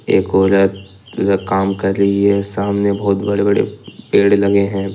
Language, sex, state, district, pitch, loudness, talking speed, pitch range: Hindi, male, Jharkhand, Ranchi, 100 Hz, -15 LUFS, 160 wpm, 95-100 Hz